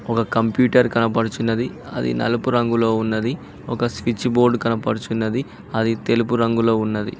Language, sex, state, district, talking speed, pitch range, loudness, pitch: Telugu, male, Telangana, Mahabubabad, 125 wpm, 110-120 Hz, -20 LUFS, 115 Hz